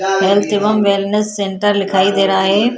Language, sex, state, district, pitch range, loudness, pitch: Hindi, female, Uttar Pradesh, Hamirpur, 195-205 Hz, -14 LUFS, 200 Hz